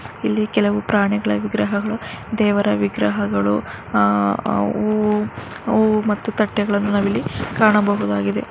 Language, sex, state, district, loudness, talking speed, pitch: Kannada, female, Karnataka, Mysore, -19 LUFS, 65 wpm, 205 Hz